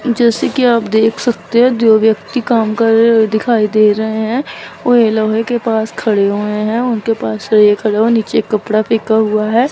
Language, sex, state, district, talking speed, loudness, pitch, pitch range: Hindi, female, Chandigarh, Chandigarh, 185 wpm, -13 LUFS, 220 Hz, 215-235 Hz